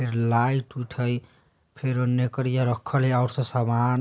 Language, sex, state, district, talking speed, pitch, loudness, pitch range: Bajjika, male, Bihar, Vaishali, 120 wpm, 125 Hz, -25 LUFS, 120-130 Hz